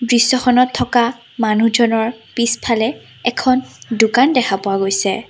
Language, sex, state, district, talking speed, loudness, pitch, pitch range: Assamese, female, Assam, Sonitpur, 100 wpm, -16 LUFS, 235 Hz, 225-250 Hz